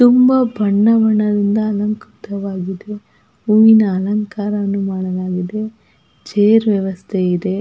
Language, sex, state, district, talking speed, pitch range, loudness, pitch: Kannada, female, Karnataka, Belgaum, 85 wpm, 195-215 Hz, -16 LUFS, 205 Hz